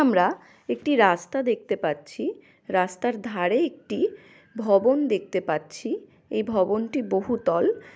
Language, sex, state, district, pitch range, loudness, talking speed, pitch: Bengali, female, West Bengal, Malda, 195-275 Hz, -25 LUFS, 105 wpm, 230 Hz